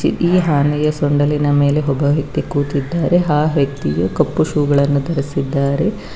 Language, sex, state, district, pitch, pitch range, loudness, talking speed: Kannada, female, Karnataka, Bangalore, 145 Hz, 140-150 Hz, -16 LUFS, 125 wpm